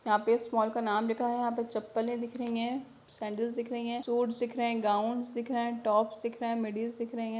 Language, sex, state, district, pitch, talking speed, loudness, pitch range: Hindi, female, Bihar, Begusarai, 235 Hz, 270 wpm, -32 LUFS, 225-240 Hz